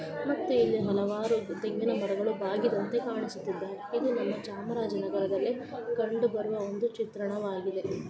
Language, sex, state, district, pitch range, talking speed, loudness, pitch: Kannada, female, Karnataka, Chamarajanagar, 200-235 Hz, 105 wpm, -31 LUFS, 215 Hz